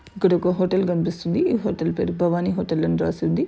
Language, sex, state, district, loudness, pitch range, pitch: Telugu, female, Telangana, Nalgonda, -22 LUFS, 165-185 Hz, 175 Hz